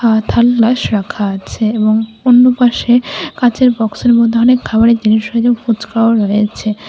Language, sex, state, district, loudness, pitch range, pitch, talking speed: Bengali, female, Tripura, West Tripura, -12 LUFS, 220-245 Hz, 230 Hz, 120 wpm